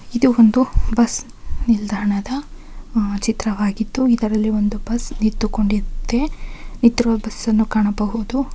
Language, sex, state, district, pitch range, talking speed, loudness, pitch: Kannada, female, Karnataka, Mysore, 210-235 Hz, 105 wpm, -19 LUFS, 220 Hz